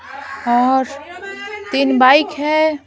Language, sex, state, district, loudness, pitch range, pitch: Hindi, female, Bihar, Patna, -15 LUFS, 265-315 Hz, 285 Hz